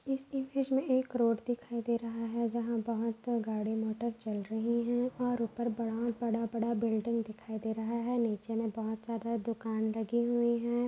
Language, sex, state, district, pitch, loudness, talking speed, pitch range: Hindi, female, Maharashtra, Aurangabad, 230 Hz, -34 LUFS, 185 wpm, 225-235 Hz